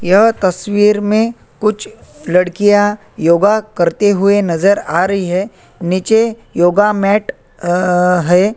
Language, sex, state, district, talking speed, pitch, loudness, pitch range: Hindi, male, Chhattisgarh, Korba, 120 wpm, 200 Hz, -13 LUFS, 180-210 Hz